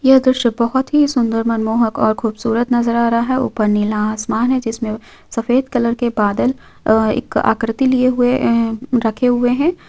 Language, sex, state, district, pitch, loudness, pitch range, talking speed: Hindi, female, Jharkhand, Sahebganj, 235 Hz, -16 LUFS, 225-255 Hz, 180 wpm